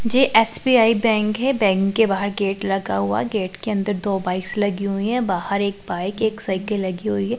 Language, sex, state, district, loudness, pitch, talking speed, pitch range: Hindi, female, Punjab, Pathankot, -20 LUFS, 200 Hz, 210 wpm, 195-220 Hz